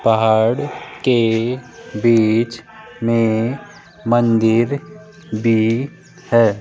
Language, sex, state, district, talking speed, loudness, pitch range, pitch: Hindi, male, Rajasthan, Jaipur, 65 wpm, -17 LUFS, 110-130 Hz, 115 Hz